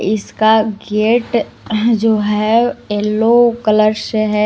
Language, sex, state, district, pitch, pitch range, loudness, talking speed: Hindi, female, Jharkhand, Palamu, 215 Hz, 215-230 Hz, -14 LUFS, 105 wpm